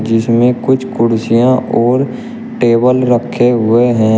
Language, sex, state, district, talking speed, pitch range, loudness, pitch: Hindi, male, Uttar Pradesh, Shamli, 115 wpm, 115-130 Hz, -12 LUFS, 120 Hz